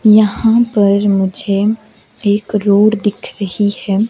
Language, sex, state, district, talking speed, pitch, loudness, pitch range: Hindi, female, Himachal Pradesh, Shimla, 115 wpm, 205 Hz, -14 LUFS, 200-215 Hz